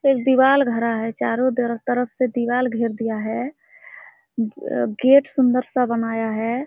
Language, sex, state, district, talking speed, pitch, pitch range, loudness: Hindi, female, Jharkhand, Sahebganj, 155 wpm, 245 Hz, 230-260 Hz, -20 LUFS